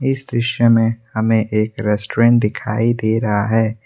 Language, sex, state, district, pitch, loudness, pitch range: Hindi, male, Assam, Kamrup Metropolitan, 115 Hz, -17 LUFS, 110-115 Hz